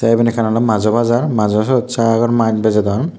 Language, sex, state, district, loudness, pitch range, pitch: Chakma, male, Tripura, Unakoti, -15 LUFS, 110-120 Hz, 115 Hz